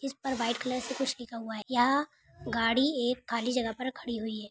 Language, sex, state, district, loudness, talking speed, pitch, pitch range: Hindi, female, Bihar, Gopalganj, -31 LUFS, 240 wpm, 245 Hz, 230-260 Hz